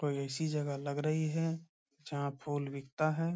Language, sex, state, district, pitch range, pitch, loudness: Hindi, male, Bihar, Saharsa, 140-160 Hz, 150 Hz, -36 LUFS